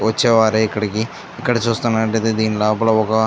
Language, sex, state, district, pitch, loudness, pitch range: Telugu, male, Andhra Pradesh, Chittoor, 110 Hz, -17 LUFS, 110-115 Hz